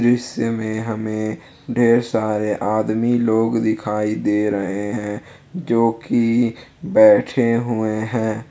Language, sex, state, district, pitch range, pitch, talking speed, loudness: Hindi, male, Jharkhand, Palamu, 110-120 Hz, 115 Hz, 115 wpm, -19 LUFS